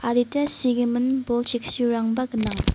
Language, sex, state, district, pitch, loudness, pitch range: Garo, female, Meghalaya, West Garo Hills, 245 Hz, -22 LUFS, 240-250 Hz